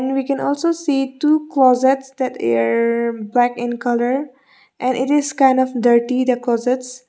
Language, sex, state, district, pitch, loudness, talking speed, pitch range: English, female, Mizoram, Aizawl, 255 Hz, -18 LUFS, 170 wpm, 240-270 Hz